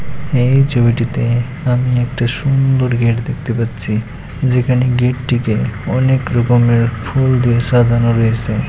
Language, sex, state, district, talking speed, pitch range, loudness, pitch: Bengali, male, West Bengal, Malda, 110 wpm, 120-130 Hz, -15 LUFS, 125 Hz